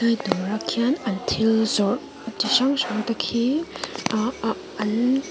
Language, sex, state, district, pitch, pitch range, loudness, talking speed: Mizo, female, Mizoram, Aizawl, 230 Hz, 215-260 Hz, -23 LUFS, 135 wpm